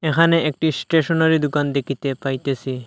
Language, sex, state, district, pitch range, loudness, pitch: Bengali, male, Assam, Hailakandi, 135-160 Hz, -19 LUFS, 145 Hz